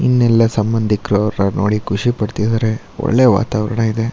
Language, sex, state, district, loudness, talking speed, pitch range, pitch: Kannada, male, Karnataka, Shimoga, -16 LUFS, 145 wpm, 105-115 Hz, 110 Hz